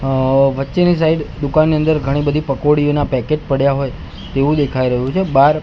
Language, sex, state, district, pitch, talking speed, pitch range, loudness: Gujarati, male, Gujarat, Gandhinagar, 145 Hz, 170 wpm, 135-155 Hz, -15 LUFS